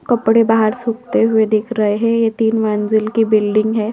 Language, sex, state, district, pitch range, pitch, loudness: Hindi, female, Chhattisgarh, Korba, 215-230 Hz, 220 Hz, -15 LUFS